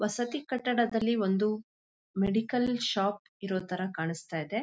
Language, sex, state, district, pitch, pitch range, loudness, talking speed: Kannada, female, Karnataka, Mysore, 215 Hz, 195-235 Hz, -31 LUFS, 90 wpm